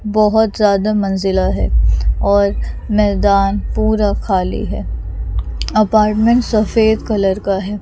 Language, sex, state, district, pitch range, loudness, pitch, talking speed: Hindi, female, Chhattisgarh, Raipur, 200-215 Hz, -15 LUFS, 210 Hz, 105 wpm